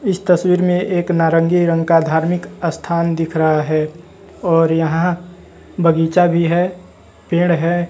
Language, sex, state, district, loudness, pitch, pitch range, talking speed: Hindi, male, Bihar, West Champaran, -16 LUFS, 170 Hz, 165-180 Hz, 145 wpm